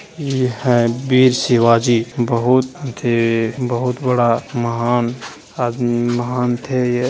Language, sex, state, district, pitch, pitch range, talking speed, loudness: Hindi, male, Bihar, Jamui, 120 Hz, 120-125 Hz, 110 wpm, -17 LUFS